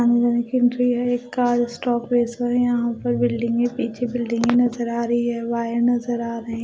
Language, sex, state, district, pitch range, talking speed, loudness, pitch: Hindi, female, Odisha, Malkangiri, 235-245 Hz, 225 wpm, -21 LUFS, 240 Hz